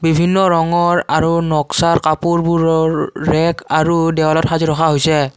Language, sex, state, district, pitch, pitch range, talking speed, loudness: Assamese, male, Assam, Kamrup Metropolitan, 160 Hz, 155-170 Hz, 125 wpm, -15 LUFS